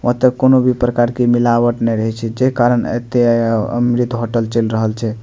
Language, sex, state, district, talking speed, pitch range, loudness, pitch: Maithili, male, Bihar, Madhepura, 220 wpm, 115-120 Hz, -15 LUFS, 120 Hz